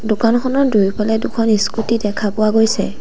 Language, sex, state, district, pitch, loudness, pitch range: Assamese, female, Assam, Sonitpur, 220 Hz, -16 LUFS, 210-230 Hz